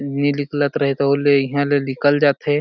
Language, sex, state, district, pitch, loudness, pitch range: Chhattisgarhi, male, Chhattisgarh, Jashpur, 140 Hz, -18 LUFS, 140-145 Hz